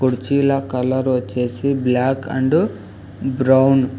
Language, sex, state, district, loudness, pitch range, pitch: Telugu, male, Telangana, Hyderabad, -18 LUFS, 125-135 Hz, 130 Hz